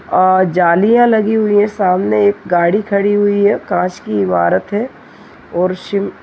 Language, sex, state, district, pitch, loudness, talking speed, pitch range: Hindi, female, Chhattisgarh, Sarguja, 185 Hz, -14 LUFS, 165 wpm, 175-205 Hz